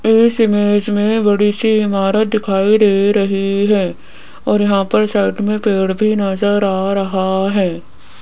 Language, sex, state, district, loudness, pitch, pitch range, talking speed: Hindi, female, Rajasthan, Jaipur, -14 LUFS, 205 Hz, 195-210 Hz, 155 wpm